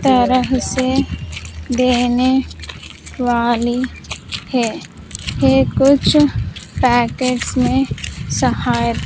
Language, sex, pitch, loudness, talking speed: Hindi, female, 235 Hz, -16 LUFS, 60 wpm